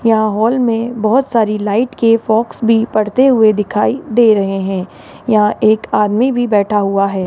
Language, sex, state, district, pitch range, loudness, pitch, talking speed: Hindi, female, Rajasthan, Jaipur, 210-230 Hz, -13 LUFS, 220 Hz, 180 wpm